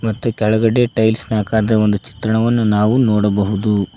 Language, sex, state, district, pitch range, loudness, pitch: Kannada, male, Karnataka, Koppal, 105-115 Hz, -16 LUFS, 110 Hz